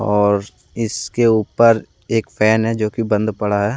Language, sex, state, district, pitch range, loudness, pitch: Hindi, male, Jharkhand, Deoghar, 105-115 Hz, -17 LUFS, 110 Hz